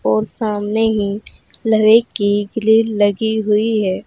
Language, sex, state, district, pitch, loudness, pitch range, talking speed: Hindi, female, Uttar Pradesh, Saharanpur, 215 Hz, -16 LUFS, 205-220 Hz, 135 wpm